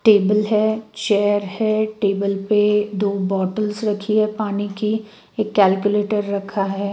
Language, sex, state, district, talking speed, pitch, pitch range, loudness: Hindi, female, Chhattisgarh, Raipur, 140 wpm, 210 Hz, 200-215 Hz, -20 LUFS